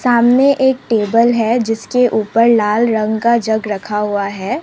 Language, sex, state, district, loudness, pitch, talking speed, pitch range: Hindi, female, Assam, Sonitpur, -14 LUFS, 230 Hz, 170 wpm, 215-240 Hz